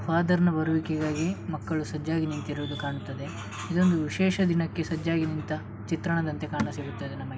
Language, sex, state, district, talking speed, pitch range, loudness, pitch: Kannada, male, Karnataka, Dakshina Kannada, 140 wpm, 140-165 Hz, -28 LUFS, 155 Hz